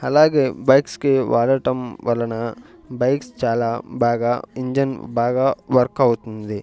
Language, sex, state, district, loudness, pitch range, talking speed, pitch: Telugu, male, Andhra Pradesh, Sri Satya Sai, -20 LUFS, 115-135 Hz, 110 wpm, 125 Hz